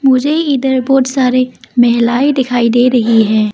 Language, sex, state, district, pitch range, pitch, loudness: Hindi, female, Arunachal Pradesh, Lower Dibang Valley, 240-265 Hz, 255 Hz, -12 LUFS